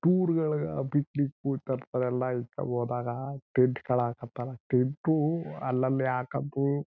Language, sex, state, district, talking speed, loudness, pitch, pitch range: Kannada, male, Karnataka, Chamarajanagar, 85 wpm, -30 LUFS, 130 Hz, 125-145 Hz